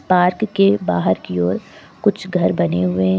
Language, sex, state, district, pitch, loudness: Hindi, female, Uttar Pradesh, Lucknow, 140 Hz, -18 LUFS